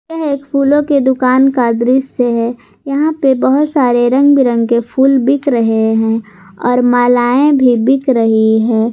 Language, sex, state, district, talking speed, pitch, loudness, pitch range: Hindi, female, Jharkhand, Garhwa, 160 wpm, 250 Hz, -12 LUFS, 230-275 Hz